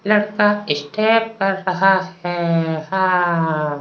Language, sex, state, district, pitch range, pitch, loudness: Hindi, male, Uttar Pradesh, Varanasi, 165-205 Hz, 185 Hz, -18 LUFS